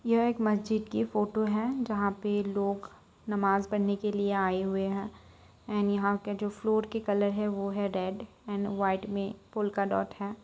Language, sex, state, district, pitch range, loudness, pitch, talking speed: Hindi, female, Uttar Pradesh, Budaun, 200-215 Hz, -30 LUFS, 205 Hz, 190 wpm